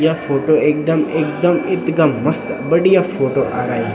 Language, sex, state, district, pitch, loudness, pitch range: Garhwali, male, Uttarakhand, Tehri Garhwal, 155 Hz, -16 LUFS, 135-165 Hz